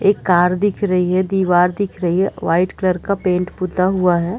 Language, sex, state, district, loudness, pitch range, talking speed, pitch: Hindi, female, Bihar, Gopalganj, -17 LUFS, 180-195 Hz, 220 wpm, 185 Hz